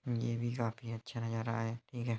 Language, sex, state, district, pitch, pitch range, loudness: Hindi, male, Uttar Pradesh, Hamirpur, 115 Hz, 115-120 Hz, -38 LUFS